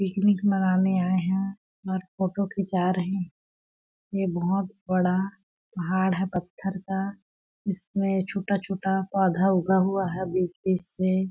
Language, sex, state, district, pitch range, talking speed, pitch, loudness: Hindi, female, Chhattisgarh, Balrampur, 185-195 Hz, 125 wpm, 190 Hz, -26 LUFS